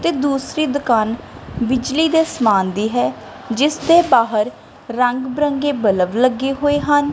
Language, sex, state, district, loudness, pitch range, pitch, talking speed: Punjabi, female, Punjab, Kapurthala, -17 LUFS, 235-290 Hz, 265 Hz, 145 wpm